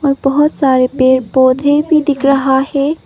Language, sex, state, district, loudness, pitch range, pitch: Hindi, female, Arunachal Pradesh, Papum Pare, -12 LUFS, 260-290 Hz, 275 Hz